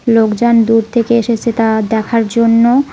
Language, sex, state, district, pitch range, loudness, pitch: Bengali, female, West Bengal, Cooch Behar, 225-235 Hz, -12 LUFS, 230 Hz